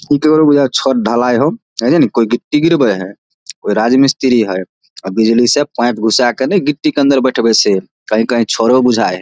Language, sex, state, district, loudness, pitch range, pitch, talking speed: Maithili, male, Bihar, Samastipur, -12 LUFS, 115-140 Hz, 125 Hz, 235 wpm